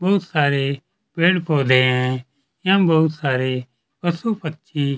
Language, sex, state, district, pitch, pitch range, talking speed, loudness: Hindi, male, Chhattisgarh, Kabirdham, 145 Hz, 130-170 Hz, 130 wpm, -19 LUFS